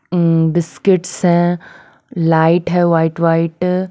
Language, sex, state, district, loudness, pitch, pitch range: Hindi, female, Maharashtra, Mumbai Suburban, -15 LUFS, 170 Hz, 165-175 Hz